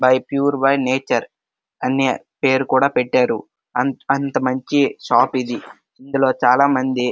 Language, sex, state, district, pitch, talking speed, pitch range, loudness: Telugu, male, Andhra Pradesh, Srikakulam, 130 Hz, 135 wpm, 130-140 Hz, -18 LUFS